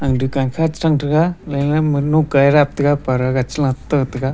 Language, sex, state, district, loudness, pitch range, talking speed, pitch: Wancho, male, Arunachal Pradesh, Longding, -17 LUFS, 135-150 Hz, 205 wpm, 145 Hz